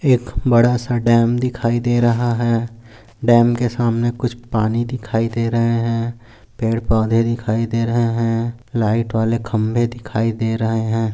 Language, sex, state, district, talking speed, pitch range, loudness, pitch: Hindi, male, Maharashtra, Aurangabad, 160 wpm, 115-120 Hz, -18 LUFS, 115 Hz